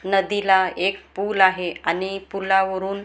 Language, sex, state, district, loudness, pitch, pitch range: Marathi, female, Maharashtra, Gondia, -21 LUFS, 190 Hz, 190-195 Hz